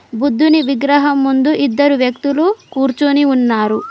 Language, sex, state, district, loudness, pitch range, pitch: Telugu, female, Telangana, Mahabubabad, -13 LUFS, 265-290 Hz, 280 Hz